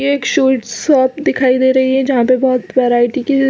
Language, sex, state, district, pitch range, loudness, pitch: Hindi, female, Chhattisgarh, Balrampur, 255-270 Hz, -13 LUFS, 260 Hz